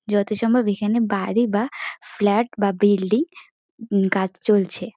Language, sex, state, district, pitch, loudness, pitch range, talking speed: Bengali, female, West Bengal, North 24 Parganas, 210 Hz, -21 LUFS, 200-230 Hz, 130 wpm